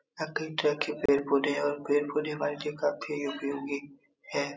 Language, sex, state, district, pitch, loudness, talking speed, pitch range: Hindi, male, Bihar, Supaul, 145 Hz, -30 LUFS, 185 wpm, 140-150 Hz